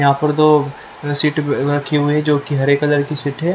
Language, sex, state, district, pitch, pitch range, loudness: Hindi, male, Haryana, Charkhi Dadri, 145 Hz, 145-150 Hz, -16 LUFS